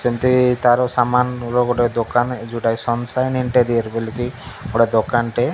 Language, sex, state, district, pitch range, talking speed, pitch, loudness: Odia, male, Odisha, Malkangiri, 115-125 Hz, 150 wpm, 120 Hz, -18 LUFS